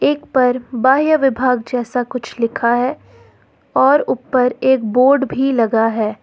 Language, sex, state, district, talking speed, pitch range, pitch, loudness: Hindi, female, Jharkhand, Ranchi, 145 wpm, 235-265 Hz, 250 Hz, -16 LUFS